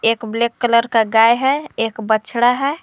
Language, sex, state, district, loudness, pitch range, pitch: Hindi, female, Uttar Pradesh, Lucknow, -16 LUFS, 225-245 Hz, 235 Hz